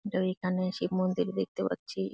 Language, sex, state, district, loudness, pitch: Bengali, female, West Bengal, Jalpaiguri, -31 LUFS, 185 Hz